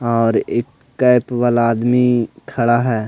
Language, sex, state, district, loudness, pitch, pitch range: Hindi, male, Haryana, Rohtak, -16 LUFS, 120 Hz, 115-125 Hz